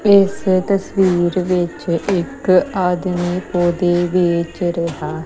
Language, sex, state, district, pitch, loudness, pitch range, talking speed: Punjabi, female, Punjab, Kapurthala, 180 Hz, -17 LUFS, 175-185 Hz, 90 wpm